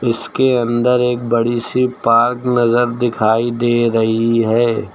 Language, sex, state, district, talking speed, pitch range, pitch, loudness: Hindi, male, Uttar Pradesh, Lucknow, 135 wpm, 115-125 Hz, 120 Hz, -15 LUFS